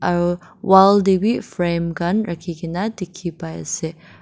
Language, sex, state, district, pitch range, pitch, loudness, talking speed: Nagamese, female, Nagaland, Dimapur, 170-190 Hz, 175 Hz, -19 LUFS, 140 wpm